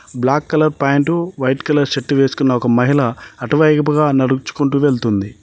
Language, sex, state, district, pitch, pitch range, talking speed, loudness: Telugu, male, Telangana, Mahabubabad, 140 Hz, 130-150 Hz, 135 wpm, -15 LUFS